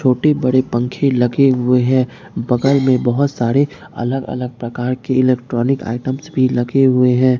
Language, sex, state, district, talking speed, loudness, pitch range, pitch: Hindi, male, Bihar, Katihar, 160 wpm, -16 LUFS, 125-135 Hz, 130 Hz